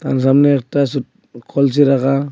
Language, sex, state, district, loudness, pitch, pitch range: Bengali, male, Assam, Hailakandi, -15 LUFS, 140 Hz, 135-140 Hz